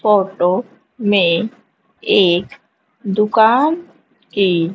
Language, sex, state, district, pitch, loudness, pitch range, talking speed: Hindi, female, Haryana, Rohtak, 210 Hz, -16 LUFS, 185-225 Hz, 65 wpm